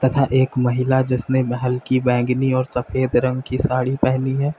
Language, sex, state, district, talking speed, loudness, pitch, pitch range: Hindi, male, Uttar Pradesh, Lalitpur, 155 wpm, -19 LUFS, 130 Hz, 125-130 Hz